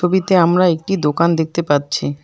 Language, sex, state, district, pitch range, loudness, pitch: Bengali, female, West Bengal, Alipurduar, 155-180 Hz, -16 LUFS, 170 Hz